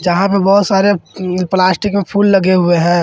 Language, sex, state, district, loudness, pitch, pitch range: Hindi, male, Jharkhand, Ranchi, -13 LUFS, 190 Hz, 180-200 Hz